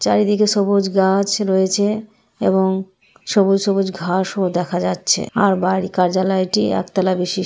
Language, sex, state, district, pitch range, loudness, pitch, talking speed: Bengali, female, West Bengal, Jhargram, 185-200 Hz, -18 LUFS, 190 Hz, 130 wpm